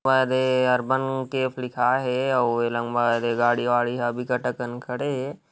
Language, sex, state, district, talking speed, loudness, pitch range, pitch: Chhattisgarhi, male, Chhattisgarh, Rajnandgaon, 205 wpm, -24 LUFS, 120-130 Hz, 125 Hz